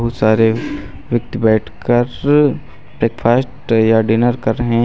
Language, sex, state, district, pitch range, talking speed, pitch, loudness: Hindi, male, Uttar Pradesh, Lucknow, 110-120 Hz, 125 wpm, 115 Hz, -15 LUFS